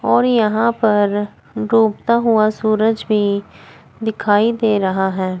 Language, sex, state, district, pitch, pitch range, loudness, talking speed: Hindi, female, Chandigarh, Chandigarh, 215 Hz, 205-225 Hz, -16 LUFS, 120 wpm